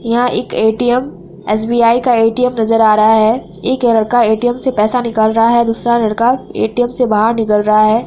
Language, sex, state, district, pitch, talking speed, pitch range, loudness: Hindi, female, Bihar, Araria, 230 Hz, 195 wpm, 220-245 Hz, -13 LUFS